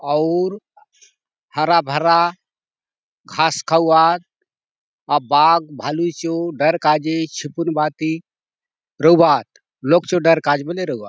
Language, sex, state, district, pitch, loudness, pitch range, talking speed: Halbi, male, Chhattisgarh, Bastar, 165 Hz, -17 LUFS, 150-170 Hz, 120 wpm